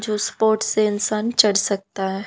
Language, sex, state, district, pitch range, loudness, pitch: Hindi, female, Haryana, Jhajjar, 200-215 Hz, -19 LUFS, 210 Hz